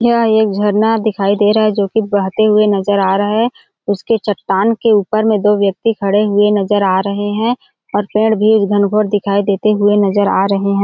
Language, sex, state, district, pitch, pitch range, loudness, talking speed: Hindi, female, Chhattisgarh, Balrampur, 205 Hz, 200-220 Hz, -14 LUFS, 215 wpm